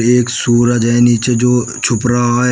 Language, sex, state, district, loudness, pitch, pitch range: Hindi, male, Uttar Pradesh, Shamli, -13 LUFS, 120 Hz, 120-125 Hz